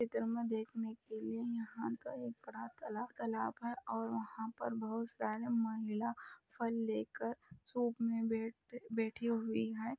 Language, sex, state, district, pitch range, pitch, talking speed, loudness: Hindi, female, Rajasthan, Nagaur, 220-235 Hz, 230 Hz, 125 wpm, -41 LUFS